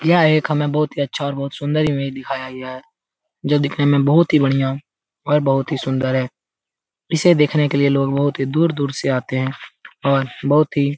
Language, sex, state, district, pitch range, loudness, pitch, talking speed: Hindi, male, Bihar, Saran, 135-150 Hz, -18 LUFS, 140 Hz, 210 wpm